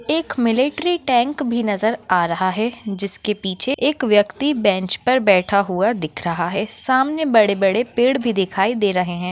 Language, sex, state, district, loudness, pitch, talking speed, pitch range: Hindi, female, Maharashtra, Nagpur, -18 LUFS, 220 Hz, 180 wpm, 195-260 Hz